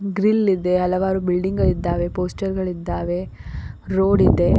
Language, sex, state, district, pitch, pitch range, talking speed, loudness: Kannada, female, Karnataka, Koppal, 185 Hz, 180-195 Hz, 115 wpm, -20 LUFS